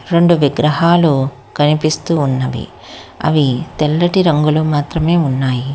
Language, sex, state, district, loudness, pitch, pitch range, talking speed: Telugu, female, Telangana, Hyderabad, -14 LUFS, 150 Hz, 135-165 Hz, 95 wpm